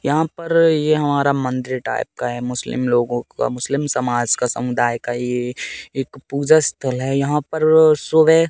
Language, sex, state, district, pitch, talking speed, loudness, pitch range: Hindi, male, Madhya Pradesh, Katni, 135 Hz, 170 wpm, -18 LUFS, 125-155 Hz